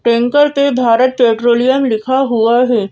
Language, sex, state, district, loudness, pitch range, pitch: Hindi, female, Madhya Pradesh, Bhopal, -12 LUFS, 235-265 Hz, 240 Hz